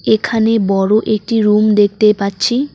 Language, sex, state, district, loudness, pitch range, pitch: Bengali, female, West Bengal, Cooch Behar, -13 LUFS, 205-225 Hz, 215 Hz